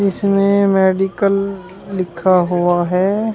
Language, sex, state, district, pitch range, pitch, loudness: Hindi, male, Uttar Pradesh, Shamli, 185-200 Hz, 195 Hz, -15 LUFS